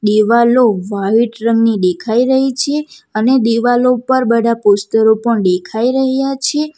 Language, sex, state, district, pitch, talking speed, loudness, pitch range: Gujarati, female, Gujarat, Valsad, 235 Hz, 140 wpm, -13 LUFS, 220-260 Hz